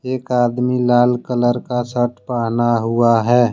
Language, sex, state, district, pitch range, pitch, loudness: Hindi, male, Jharkhand, Deoghar, 120-125 Hz, 120 Hz, -17 LUFS